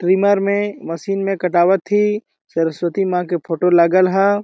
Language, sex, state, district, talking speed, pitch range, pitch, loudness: Awadhi, male, Chhattisgarh, Balrampur, 175 wpm, 175-200 Hz, 185 Hz, -17 LUFS